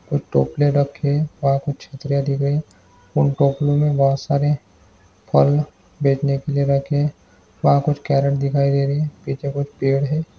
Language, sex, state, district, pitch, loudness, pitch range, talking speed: Hindi, male, Bihar, Purnia, 140 Hz, -20 LUFS, 135-145 Hz, 165 wpm